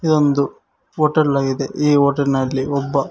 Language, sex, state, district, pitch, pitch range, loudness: Kannada, male, Karnataka, Koppal, 140 Hz, 135-150 Hz, -18 LUFS